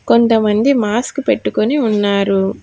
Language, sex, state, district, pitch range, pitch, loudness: Telugu, female, Telangana, Hyderabad, 205-255 Hz, 225 Hz, -14 LUFS